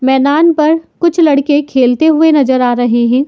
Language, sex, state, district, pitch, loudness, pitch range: Hindi, female, Uttar Pradesh, Muzaffarnagar, 290 Hz, -10 LUFS, 255-315 Hz